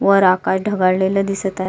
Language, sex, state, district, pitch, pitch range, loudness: Marathi, female, Maharashtra, Solapur, 190 Hz, 185-195 Hz, -17 LUFS